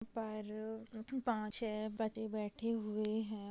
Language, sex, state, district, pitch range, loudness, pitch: Hindi, female, Bihar, Purnia, 215-225 Hz, -40 LUFS, 220 Hz